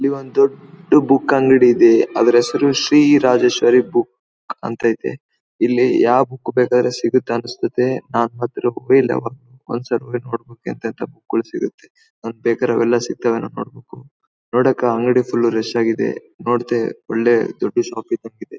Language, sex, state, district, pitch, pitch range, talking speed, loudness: Kannada, male, Karnataka, Bellary, 125 Hz, 120-135 Hz, 115 wpm, -17 LUFS